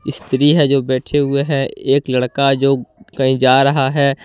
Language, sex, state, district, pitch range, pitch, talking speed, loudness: Hindi, male, Jharkhand, Deoghar, 130-140 Hz, 135 Hz, 185 wpm, -15 LUFS